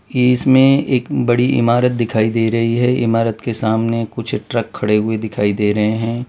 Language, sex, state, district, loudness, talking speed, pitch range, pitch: Hindi, male, Gujarat, Valsad, -16 LUFS, 180 wpm, 110-125 Hz, 115 Hz